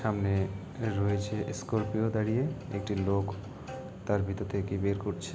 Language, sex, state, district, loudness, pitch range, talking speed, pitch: Bengali, male, West Bengal, Malda, -32 LUFS, 100-110 Hz, 135 wpm, 100 Hz